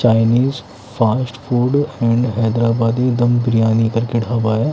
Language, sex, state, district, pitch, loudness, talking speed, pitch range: Hindi, male, Odisha, Khordha, 115 Hz, -16 LUFS, 125 wpm, 115-125 Hz